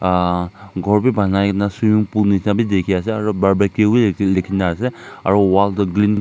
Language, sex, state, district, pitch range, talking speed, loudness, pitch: Nagamese, male, Nagaland, Kohima, 95-105 Hz, 205 wpm, -17 LUFS, 100 Hz